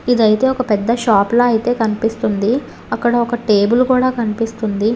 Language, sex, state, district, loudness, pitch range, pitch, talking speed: Telugu, female, Telangana, Hyderabad, -16 LUFS, 215-245 Hz, 230 Hz, 145 wpm